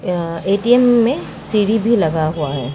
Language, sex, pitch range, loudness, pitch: Awadhi, female, 160-235 Hz, -16 LUFS, 200 Hz